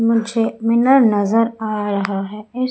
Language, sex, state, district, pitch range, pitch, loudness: Hindi, female, Madhya Pradesh, Umaria, 210-230 Hz, 225 Hz, -17 LUFS